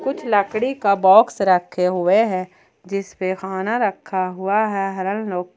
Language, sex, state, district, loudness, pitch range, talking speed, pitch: Hindi, female, Jharkhand, Ranchi, -19 LUFS, 185-215 Hz, 130 wpm, 195 Hz